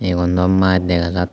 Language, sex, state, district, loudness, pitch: Chakma, male, Tripura, Dhalai, -16 LUFS, 90 Hz